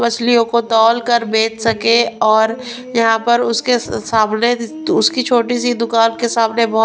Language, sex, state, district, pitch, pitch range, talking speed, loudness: Hindi, female, Punjab, Pathankot, 235 Hz, 225-240 Hz, 140 wpm, -15 LUFS